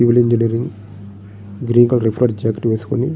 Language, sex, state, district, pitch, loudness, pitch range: Telugu, male, Andhra Pradesh, Srikakulam, 115 Hz, -16 LUFS, 105-120 Hz